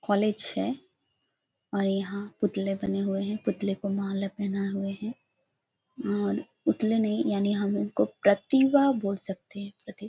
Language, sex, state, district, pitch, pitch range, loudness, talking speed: Hindi, female, Bihar, Jahanabad, 200 Hz, 195-210 Hz, -28 LUFS, 155 wpm